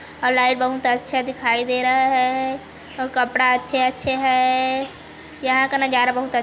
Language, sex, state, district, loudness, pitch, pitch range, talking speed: Hindi, female, Chhattisgarh, Kabirdham, -19 LUFS, 255 Hz, 250-265 Hz, 150 wpm